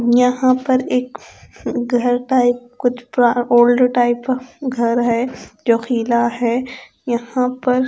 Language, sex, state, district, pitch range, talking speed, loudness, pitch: Hindi, female, Chandigarh, Chandigarh, 240-255 Hz, 130 wpm, -17 LUFS, 245 Hz